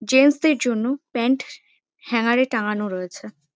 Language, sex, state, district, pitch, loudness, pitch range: Bengali, female, West Bengal, Kolkata, 240 Hz, -21 LUFS, 210-265 Hz